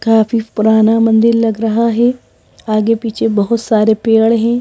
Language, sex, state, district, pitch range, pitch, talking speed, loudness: Hindi, female, Madhya Pradesh, Bhopal, 220-230 Hz, 225 Hz, 155 wpm, -13 LUFS